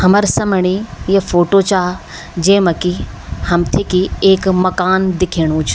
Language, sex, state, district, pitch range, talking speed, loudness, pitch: Garhwali, female, Uttarakhand, Tehri Garhwal, 175-190 Hz, 135 wpm, -14 LUFS, 185 Hz